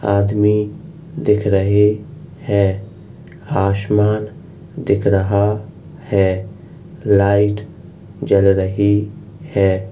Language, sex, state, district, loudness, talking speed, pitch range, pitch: Hindi, male, Uttar Pradesh, Hamirpur, -17 LUFS, 70 wpm, 100-115 Hz, 105 Hz